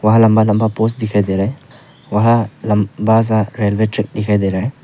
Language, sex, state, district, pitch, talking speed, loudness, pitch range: Hindi, male, Arunachal Pradesh, Papum Pare, 110 Hz, 225 wpm, -15 LUFS, 105-115 Hz